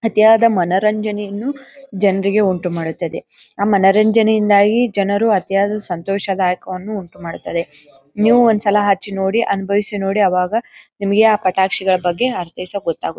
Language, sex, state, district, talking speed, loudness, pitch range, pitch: Kannada, female, Karnataka, Bijapur, 115 wpm, -16 LUFS, 185-215 Hz, 200 Hz